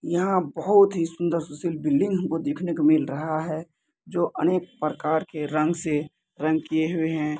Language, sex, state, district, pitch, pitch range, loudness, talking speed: Hindi, male, Bihar, Muzaffarpur, 160 Hz, 155-170 Hz, -24 LUFS, 180 wpm